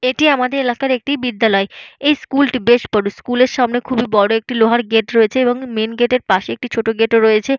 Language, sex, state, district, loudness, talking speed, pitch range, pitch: Bengali, female, Jharkhand, Jamtara, -15 LUFS, 260 wpm, 225-260 Hz, 245 Hz